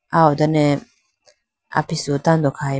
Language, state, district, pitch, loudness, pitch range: Idu Mishmi, Arunachal Pradesh, Lower Dibang Valley, 150 Hz, -18 LUFS, 140-155 Hz